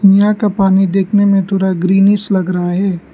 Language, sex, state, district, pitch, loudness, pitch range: Hindi, male, Arunachal Pradesh, Lower Dibang Valley, 195 Hz, -13 LUFS, 190-200 Hz